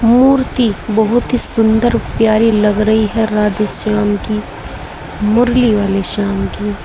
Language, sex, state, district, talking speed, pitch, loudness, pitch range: Hindi, female, Uttar Pradesh, Saharanpur, 125 wpm, 215 Hz, -14 LUFS, 210-230 Hz